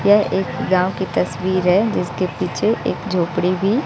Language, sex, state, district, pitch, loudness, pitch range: Hindi, female, Bihar, West Champaran, 185 Hz, -19 LUFS, 180-195 Hz